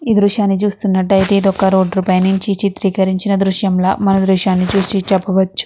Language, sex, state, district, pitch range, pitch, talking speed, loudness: Telugu, female, Andhra Pradesh, Krishna, 190-200 Hz, 195 Hz, 170 wpm, -14 LUFS